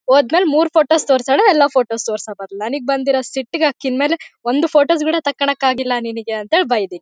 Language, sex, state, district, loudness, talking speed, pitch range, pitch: Kannada, female, Karnataka, Bellary, -16 LUFS, 180 wpm, 245-305 Hz, 275 Hz